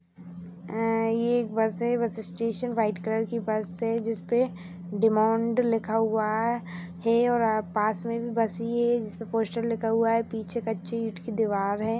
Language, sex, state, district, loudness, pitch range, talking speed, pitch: Hindi, female, Bihar, Jahanabad, -27 LUFS, 215-230 Hz, 190 wpm, 225 Hz